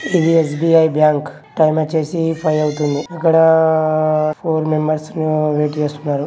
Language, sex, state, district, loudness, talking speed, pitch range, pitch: Telugu, male, Telangana, Karimnagar, -16 LUFS, 135 wpm, 150-160 Hz, 155 Hz